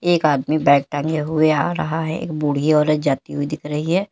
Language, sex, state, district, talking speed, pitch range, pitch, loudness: Hindi, female, Uttar Pradesh, Lalitpur, 235 wpm, 145-160 Hz, 155 Hz, -19 LUFS